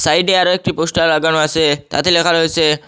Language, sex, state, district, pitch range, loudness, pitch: Bengali, male, Assam, Hailakandi, 155-170 Hz, -14 LUFS, 160 Hz